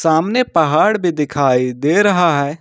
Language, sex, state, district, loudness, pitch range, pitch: Hindi, male, Jharkhand, Ranchi, -15 LUFS, 145-180 Hz, 160 Hz